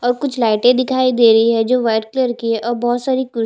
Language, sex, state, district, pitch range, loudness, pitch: Hindi, female, Chhattisgarh, Bastar, 230-255 Hz, -15 LUFS, 240 Hz